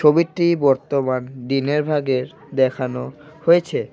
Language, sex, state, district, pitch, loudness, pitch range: Bengali, male, Assam, Kamrup Metropolitan, 140 Hz, -20 LUFS, 130-155 Hz